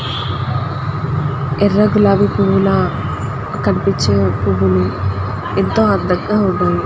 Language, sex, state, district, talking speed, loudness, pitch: Telugu, female, Andhra Pradesh, Guntur, 70 wpm, -16 LUFS, 125 Hz